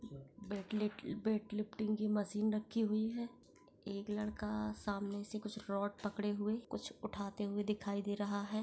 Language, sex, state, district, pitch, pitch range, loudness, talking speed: Hindi, female, Bihar, East Champaran, 210 Hz, 205-215 Hz, -40 LUFS, 165 wpm